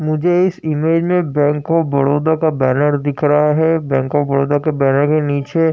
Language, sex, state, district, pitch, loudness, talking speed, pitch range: Hindi, male, Uttar Pradesh, Jyotiba Phule Nagar, 150 Hz, -15 LUFS, 210 wpm, 145-160 Hz